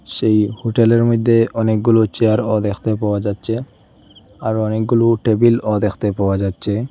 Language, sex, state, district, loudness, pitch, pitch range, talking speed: Bengali, male, Assam, Hailakandi, -16 LUFS, 110 Hz, 105-115 Hz, 120 wpm